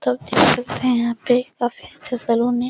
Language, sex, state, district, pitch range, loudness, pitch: Hindi, female, Bihar, Supaul, 235-250 Hz, -19 LUFS, 245 Hz